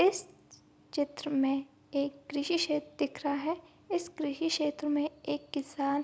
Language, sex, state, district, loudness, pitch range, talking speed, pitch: Hindi, female, Bihar, Bhagalpur, -33 LUFS, 285-325 Hz, 160 wpm, 295 Hz